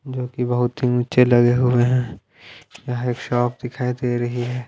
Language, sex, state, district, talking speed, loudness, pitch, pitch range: Hindi, male, Punjab, Pathankot, 190 wpm, -20 LUFS, 125 Hz, 120-125 Hz